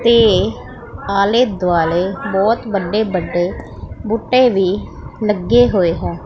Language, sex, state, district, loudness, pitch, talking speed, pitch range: Punjabi, female, Punjab, Pathankot, -16 LUFS, 200 Hz, 105 wpm, 185-225 Hz